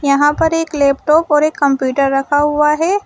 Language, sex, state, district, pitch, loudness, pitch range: Hindi, female, Uttar Pradesh, Shamli, 295 Hz, -14 LUFS, 280-310 Hz